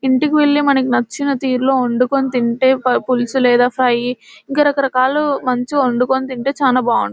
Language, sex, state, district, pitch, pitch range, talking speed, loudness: Telugu, female, Telangana, Nalgonda, 260 Hz, 250-275 Hz, 150 wpm, -15 LUFS